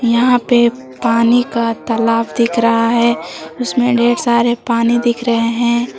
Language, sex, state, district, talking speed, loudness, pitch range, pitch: Hindi, female, Jharkhand, Palamu, 150 wpm, -14 LUFS, 230-240 Hz, 235 Hz